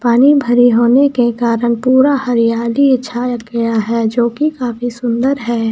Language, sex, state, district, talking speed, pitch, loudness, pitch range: Hindi, female, Jharkhand, Sahebganj, 155 wpm, 240 Hz, -13 LUFS, 235-255 Hz